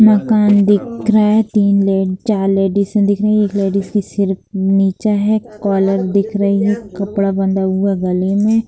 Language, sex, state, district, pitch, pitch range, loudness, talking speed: Hindi, female, Bihar, East Champaran, 200 Hz, 195-210 Hz, -15 LUFS, 185 wpm